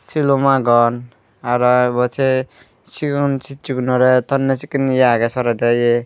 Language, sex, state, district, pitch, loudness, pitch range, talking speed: Chakma, female, Tripura, Dhalai, 125 Hz, -16 LUFS, 120-135 Hz, 140 wpm